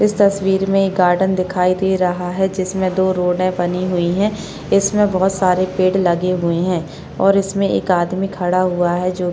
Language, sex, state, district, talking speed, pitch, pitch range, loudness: Hindi, female, Maharashtra, Chandrapur, 195 wpm, 185 Hz, 180-190 Hz, -17 LUFS